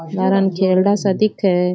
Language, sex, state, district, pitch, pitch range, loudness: Rajasthani, male, Rajasthan, Churu, 190 Hz, 185-195 Hz, -16 LUFS